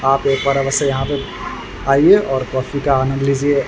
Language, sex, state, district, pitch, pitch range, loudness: Hindi, male, Bihar, Vaishali, 135 Hz, 135-140 Hz, -16 LUFS